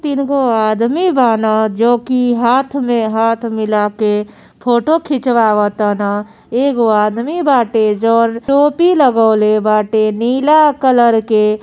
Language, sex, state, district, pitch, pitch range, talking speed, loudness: Bhojpuri, female, Uttar Pradesh, Gorakhpur, 230 Hz, 215-265 Hz, 120 wpm, -13 LUFS